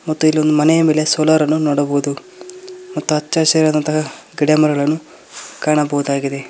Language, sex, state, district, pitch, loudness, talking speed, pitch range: Kannada, male, Karnataka, Koppal, 155 Hz, -16 LUFS, 110 wpm, 150-155 Hz